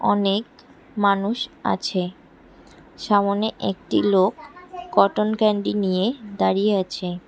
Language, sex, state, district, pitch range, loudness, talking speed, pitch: Bengali, female, West Bengal, Cooch Behar, 195-230 Hz, -22 LUFS, 90 wpm, 205 Hz